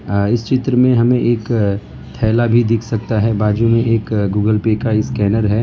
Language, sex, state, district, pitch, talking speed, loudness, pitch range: Hindi, male, Gujarat, Valsad, 110 Hz, 190 wpm, -15 LUFS, 105-120 Hz